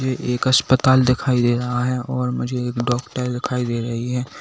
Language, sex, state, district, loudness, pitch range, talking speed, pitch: Hindi, male, Uttar Pradesh, Saharanpur, -20 LUFS, 125-130 Hz, 190 wpm, 125 Hz